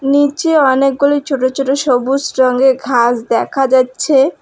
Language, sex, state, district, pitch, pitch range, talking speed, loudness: Bengali, female, West Bengal, Alipurduar, 270 Hz, 255-280 Hz, 120 wpm, -13 LUFS